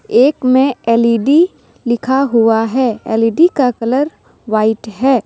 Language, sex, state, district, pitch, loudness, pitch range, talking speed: Hindi, female, Jharkhand, Deoghar, 245 Hz, -13 LUFS, 225-270 Hz, 125 wpm